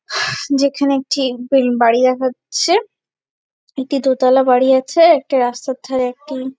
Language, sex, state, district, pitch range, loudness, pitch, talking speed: Bengali, female, West Bengal, Jalpaiguri, 255-280 Hz, -15 LUFS, 265 Hz, 125 wpm